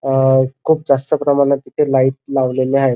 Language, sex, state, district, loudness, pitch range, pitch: Marathi, male, Maharashtra, Dhule, -15 LUFS, 130-140 Hz, 135 Hz